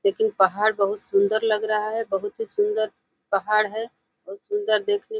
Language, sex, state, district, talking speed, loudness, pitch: Hindi, female, Uttar Pradesh, Deoria, 195 wpm, -23 LUFS, 215 Hz